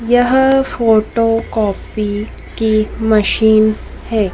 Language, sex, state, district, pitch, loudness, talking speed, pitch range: Hindi, female, Madhya Pradesh, Dhar, 220 Hz, -14 LUFS, 85 wpm, 215-230 Hz